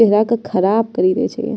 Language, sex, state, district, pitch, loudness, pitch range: Angika, female, Bihar, Bhagalpur, 225 Hz, -16 LUFS, 200-230 Hz